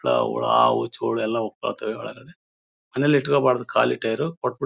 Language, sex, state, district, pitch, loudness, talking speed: Kannada, male, Karnataka, Bellary, 115 Hz, -22 LUFS, 130 wpm